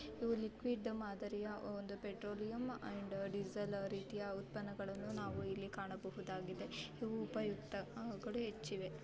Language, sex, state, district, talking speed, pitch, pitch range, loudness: Kannada, female, Karnataka, Bellary, 115 wpm, 205 Hz, 195-220 Hz, -45 LUFS